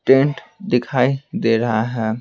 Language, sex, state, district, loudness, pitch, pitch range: Hindi, male, Bihar, Patna, -19 LUFS, 125 Hz, 115-140 Hz